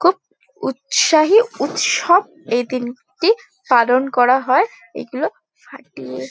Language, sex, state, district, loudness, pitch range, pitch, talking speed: Bengali, female, West Bengal, Kolkata, -17 LUFS, 245-380 Hz, 275 Hz, 85 wpm